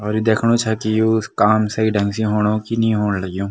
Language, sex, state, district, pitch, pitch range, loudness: Garhwali, male, Uttarakhand, Tehri Garhwal, 110 Hz, 105-110 Hz, -18 LUFS